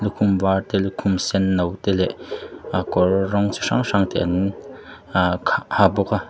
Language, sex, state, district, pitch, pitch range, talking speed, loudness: Mizo, male, Mizoram, Aizawl, 95 Hz, 95-100 Hz, 190 wpm, -20 LUFS